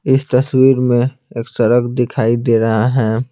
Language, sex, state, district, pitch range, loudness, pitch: Hindi, male, Bihar, Patna, 115-130 Hz, -14 LUFS, 125 Hz